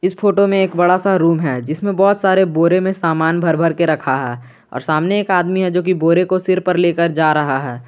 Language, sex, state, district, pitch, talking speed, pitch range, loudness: Hindi, male, Jharkhand, Garhwa, 175 Hz, 260 wpm, 155-185 Hz, -15 LUFS